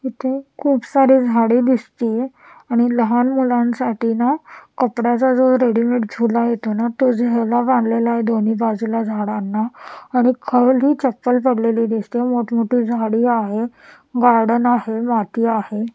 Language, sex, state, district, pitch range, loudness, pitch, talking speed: Marathi, female, Maharashtra, Washim, 230-250 Hz, -17 LUFS, 240 Hz, 130 wpm